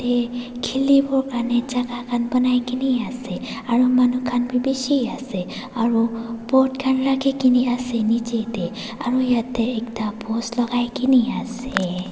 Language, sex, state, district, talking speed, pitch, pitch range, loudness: Nagamese, female, Nagaland, Dimapur, 145 wpm, 245 Hz, 230-255 Hz, -21 LUFS